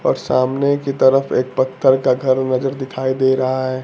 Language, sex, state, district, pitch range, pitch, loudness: Hindi, male, Bihar, Kaimur, 130-135 Hz, 130 Hz, -17 LUFS